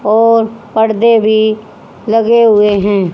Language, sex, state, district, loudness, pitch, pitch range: Hindi, female, Haryana, Jhajjar, -10 LUFS, 220 Hz, 210-230 Hz